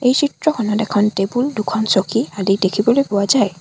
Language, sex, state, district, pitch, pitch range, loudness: Assamese, female, Assam, Sonitpur, 220 Hz, 200-250 Hz, -17 LUFS